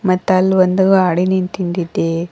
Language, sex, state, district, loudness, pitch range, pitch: Kannada, female, Karnataka, Bidar, -15 LUFS, 180-190 Hz, 185 Hz